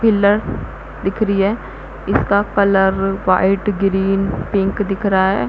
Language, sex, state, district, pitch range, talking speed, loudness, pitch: Hindi, female, Chhattisgarh, Bastar, 195-205 Hz, 130 wpm, -17 LUFS, 195 Hz